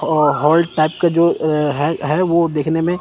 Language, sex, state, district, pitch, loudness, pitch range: Hindi, male, Chandigarh, Chandigarh, 155 Hz, -16 LUFS, 150-170 Hz